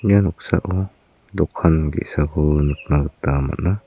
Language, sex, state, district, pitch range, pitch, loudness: Garo, male, Meghalaya, South Garo Hills, 75-90 Hz, 80 Hz, -20 LUFS